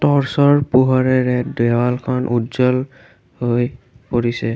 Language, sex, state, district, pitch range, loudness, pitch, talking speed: Assamese, male, Assam, Kamrup Metropolitan, 120-130 Hz, -17 LUFS, 125 Hz, 90 wpm